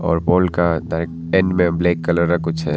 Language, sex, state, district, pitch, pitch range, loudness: Hindi, male, Arunachal Pradesh, Papum Pare, 85 Hz, 80-90 Hz, -18 LUFS